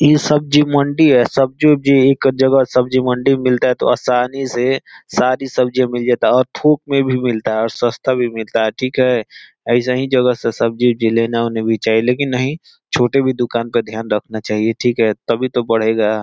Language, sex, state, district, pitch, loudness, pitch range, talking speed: Hindi, male, Uttar Pradesh, Deoria, 125 Hz, -15 LUFS, 115-135 Hz, 195 wpm